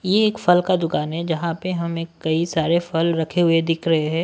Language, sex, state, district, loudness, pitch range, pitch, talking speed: Hindi, male, Maharashtra, Washim, -20 LUFS, 165-175 Hz, 165 Hz, 240 wpm